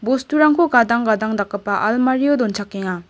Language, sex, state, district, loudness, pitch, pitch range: Garo, female, Meghalaya, West Garo Hills, -17 LUFS, 230 Hz, 205-260 Hz